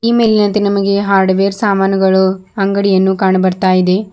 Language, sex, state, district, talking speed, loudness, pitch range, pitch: Kannada, female, Karnataka, Bidar, 130 wpm, -12 LUFS, 190-200 Hz, 195 Hz